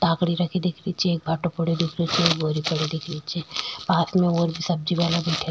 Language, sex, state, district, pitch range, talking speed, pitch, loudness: Rajasthani, female, Rajasthan, Nagaur, 160-175 Hz, 260 wpm, 170 Hz, -24 LUFS